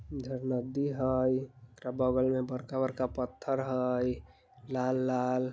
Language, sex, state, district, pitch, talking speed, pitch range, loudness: Bajjika, male, Bihar, Vaishali, 130 Hz, 95 wpm, 125-130 Hz, -32 LUFS